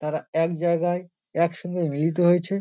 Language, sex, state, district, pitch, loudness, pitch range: Bengali, male, West Bengal, Dakshin Dinajpur, 170 Hz, -24 LUFS, 165-175 Hz